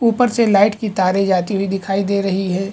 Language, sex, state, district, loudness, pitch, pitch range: Hindi, male, Chhattisgarh, Bilaspur, -17 LUFS, 195 Hz, 195-215 Hz